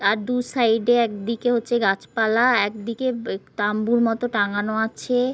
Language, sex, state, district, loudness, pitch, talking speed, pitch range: Bengali, female, West Bengal, Purulia, -22 LUFS, 230 Hz, 145 wpm, 210-245 Hz